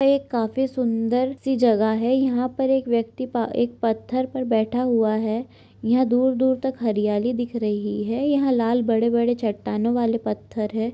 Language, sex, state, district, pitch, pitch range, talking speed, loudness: Marathi, male, Maharashtra, Sindhudurg, 240 Hz, 225-255 Hz, 180 wpm, -22 LUFS